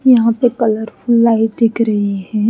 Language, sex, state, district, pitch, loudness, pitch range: Hindi, female, Haryana, Rohtak, 225 Hz, -14 LUFS, 220-235 Hz